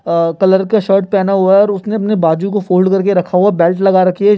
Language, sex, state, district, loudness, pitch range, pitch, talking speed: Hindi, male, Bihar, Kishanganj, -12 LUFS, 185-200 Hz, 195 Hz, 300 wpm